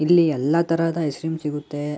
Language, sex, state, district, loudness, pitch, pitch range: Kannada, male, Karnataka, Mysore, -22 LUFS, 160 Hz, 150-165 Hz